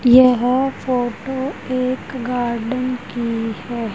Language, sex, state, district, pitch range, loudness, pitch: Hindi, female, Haryana, Rohtak, 240-255 Hz, -20 LUFS, 250 Hz